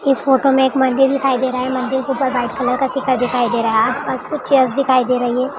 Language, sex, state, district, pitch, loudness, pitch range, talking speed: Hindi, female, Rajasthan, Churu, 260 Hz, -16 LUFS, 250-270 Hz, 280 wpm